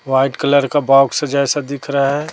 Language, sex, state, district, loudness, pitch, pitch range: Hindi, male, Chhattisgarh, Raipur, -15 LUFS, 140 Hz, 135-145 Hz